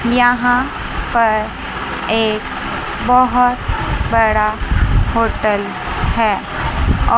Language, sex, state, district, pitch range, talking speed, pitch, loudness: Hindi, male, Chandigarh, Chandigarh, 215-245 Hz, 65 wpm, 230 Hz, -16 LUFS